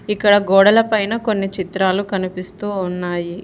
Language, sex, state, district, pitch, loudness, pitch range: Telugu, female, Telangana, Hyderabad, 195 Hz, -17 LUFS, 185-205 Hz